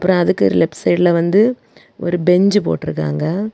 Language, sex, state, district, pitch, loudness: Tamil, female, Tamil Nadu, Kanyakumari, 175 Hz, -16 LUFS